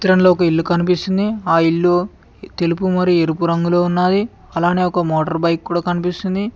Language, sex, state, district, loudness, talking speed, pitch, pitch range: Telugu, male, Telangana, Mahabubabad, -17 LUFS, 135 wpm, 175 Hz, 170-185 Hz